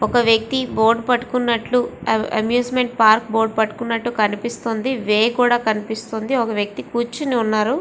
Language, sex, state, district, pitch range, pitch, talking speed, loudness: Telugu, female, Andhra Pradesh, Visakhapatnam, 220-245 Hz, 230 Hz, 130 wpm, -19 LUFS